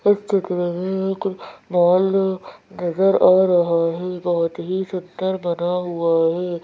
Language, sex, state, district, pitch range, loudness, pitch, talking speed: Hindi, female, Madhya Pradesh, Bhopal, 175-190 Hz, -20 LUFS, 180 Hz, 125 wpm